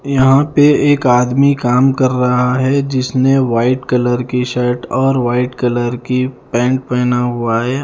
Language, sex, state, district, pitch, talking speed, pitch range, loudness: Hindi, male, Bihar, Kaimur, 125 Hz, 160 wpm, 125-135 Hz, -14 LUFS